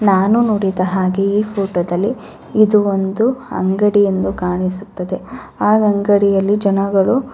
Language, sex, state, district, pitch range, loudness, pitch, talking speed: Kannada, female, Karnataka, Bellary, 190-215 Hz, -16 LUFS, 200 Hz, 125 wpm